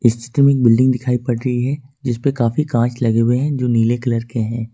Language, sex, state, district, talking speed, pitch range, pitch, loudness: Hindi, male, Jharkhand, Ranchi, 240 wpm, 115-130 Hz, 120 Hz, -17 LUFS